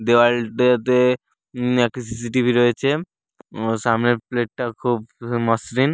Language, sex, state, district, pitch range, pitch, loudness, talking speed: Bengali, male, West Bengal, Paschim Medinipur, 115-125 Hz, 120 Hz, -20 LUFS, 110 wpm